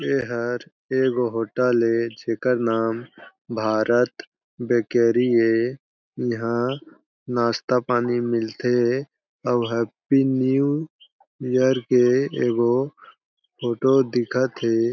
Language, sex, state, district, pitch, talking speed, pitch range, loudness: Chhattisgarhi, male, Chhattisgarh, Jashpur, 120 Hz, 90 wpm, 115-130 Hz, -22 LUFS